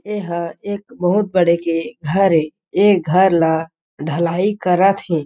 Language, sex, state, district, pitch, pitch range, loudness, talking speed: Chhattisgarhi, male, Chhattisgarh, Jashpur, 175 Hz, 165-195 Hz, -17 LUFS, 150 wpm